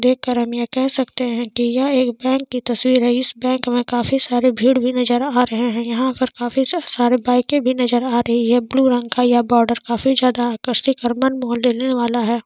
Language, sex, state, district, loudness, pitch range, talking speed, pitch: Hindi, female, Jharkhand, Sahebganj, -18 LUFS, 240-255 Hz, 225 wpm, 245 Hz